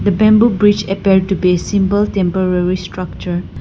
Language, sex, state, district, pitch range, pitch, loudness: English, female, Nagaland, Dimapur, 180-205 Hz, 195 Hz, -14 LUFS